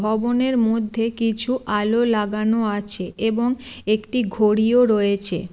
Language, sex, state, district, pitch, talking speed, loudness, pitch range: Bengali, female, West Bengal, Jalpaiguri, 220 Hz, 110 wpm, -20 LUFS, 210-235 Hz